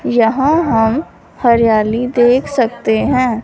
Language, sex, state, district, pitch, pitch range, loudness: Hindi, female, Punjab, Fazilka, 240 Hz, 225-260 Hz, -13 LUFS